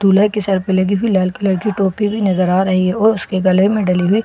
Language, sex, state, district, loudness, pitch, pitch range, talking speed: Hindi, female, Bihar, Katihar, -15 LUFS, 195 Hz, 185-210 Hz, 325 wpm